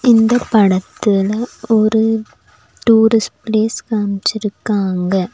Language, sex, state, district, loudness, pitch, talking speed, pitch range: Tamil, female, Tamil Nadu, Nilgiris, -15 LUFS, 220 Hz, 65 wpm, 200-225 Hz